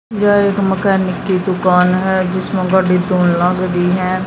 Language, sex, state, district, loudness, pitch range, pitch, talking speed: Hindi, female, Haryana, Jhajjar, -14 LUFS, 180-190 Hz, 185 Hz, 170 wpm